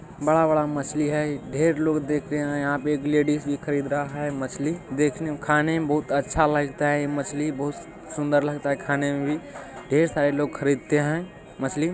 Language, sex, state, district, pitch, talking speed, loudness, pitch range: Maithili, male, Bihar, Supaul, 150 Hz, 200 wpm, -24 LUFS, 145-155 Hz